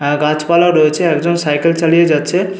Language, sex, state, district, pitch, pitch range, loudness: Bengali, male, West Bengal, Paschim Medinipur, 165 Hz, 150-170 Hz, -13 LUFS